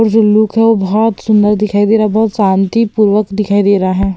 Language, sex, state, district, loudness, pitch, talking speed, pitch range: Hindi, female, Uttar Pradesh, Hamirpur, -11 LUFS, 210 Hz, 230 wpm, 200-220 Hz